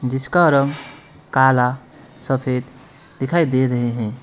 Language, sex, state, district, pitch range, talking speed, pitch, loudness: Hindi, male, West Bengal, Alipurduar, 125-140 Hz, 115 wpm, 130 Hz, -18 LUFS